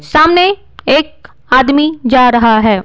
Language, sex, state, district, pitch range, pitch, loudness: Hindi, female, Bihar, Patna, 240-310 Hz, 270 Hz, -10 LUFS